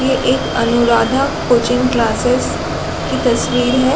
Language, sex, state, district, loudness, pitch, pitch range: Hindi, female, Chhattisgarh, Raigarh, -15 LUFS, 245 Hz, 235-260 Hz